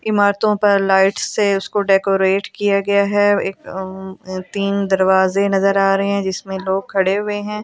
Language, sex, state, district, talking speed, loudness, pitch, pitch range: Hindi, female, Delhi, New Delhi, 180 wpm, -17 LUFS, 195 Hz, 190-205 Hz